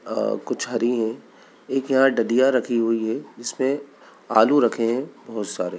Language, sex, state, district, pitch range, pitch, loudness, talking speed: Bhojpuri, male, Bihar, Saran, 115-135 Hz, 120 Hz, -22 LUFS, 165 wpm